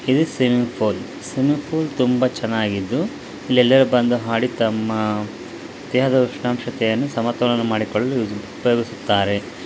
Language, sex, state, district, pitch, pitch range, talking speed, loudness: Kannada, male, Karnataka, Dakshina Kannada, 120 Hz, 110-130 Hz, 105 wpm, -20 LUFS